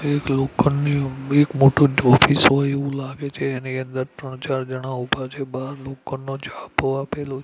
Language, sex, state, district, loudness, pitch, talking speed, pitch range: Gujarati, male, Gujarat, Gandhinagar, -20 LUFS, 135 Hz, 160 wpm, 130-140 Hz